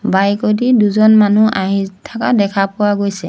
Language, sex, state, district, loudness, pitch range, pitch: Assamese, female, Assam, Sonitpur, -13 LUFS, 195-215 Hz, 205 Hz